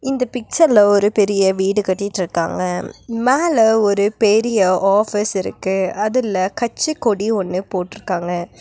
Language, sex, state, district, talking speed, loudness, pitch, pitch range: Tamil, female, Tamil Nadu, Nilgiris, 105 wpm, -17 LUFS, 205 Hz, 190-225 Hz